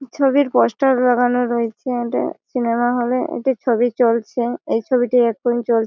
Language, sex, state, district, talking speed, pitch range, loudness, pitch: Bengali, female, West Bengal, Malda, 145 wpm, 235-255 Hz, -18 LUFS, 245 Hz